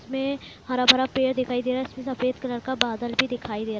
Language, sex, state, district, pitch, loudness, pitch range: Hindi, female, Bihar, Lakhisarai, 255 Hz, -24 LUFS, 245-260 Hz